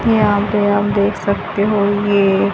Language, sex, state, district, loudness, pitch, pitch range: Hindi, female, Haryana, Jhajjar, -15 LUFS, 205 Hz, 200-205 Hz